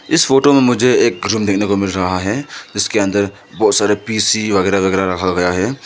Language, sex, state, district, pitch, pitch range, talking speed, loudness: Hindi, male, Arunachal Pradesh, Lower Dibang Valley, 100 Hz, 95-110 Hz, 215 wpm, -15 LUFS